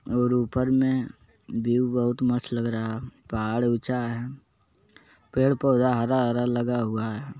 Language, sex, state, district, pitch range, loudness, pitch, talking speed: Magahi, male, Bihar, Jamui, 120-125 Hz, -25 LUFS, 120 Hz, 155 wpm